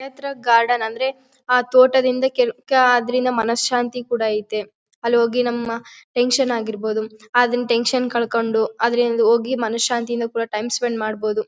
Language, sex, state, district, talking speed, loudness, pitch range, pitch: Kannada, female, Karnataka, Bellary, 140 wpm, -19 LUFS, 230-250 Hz, 235 Hz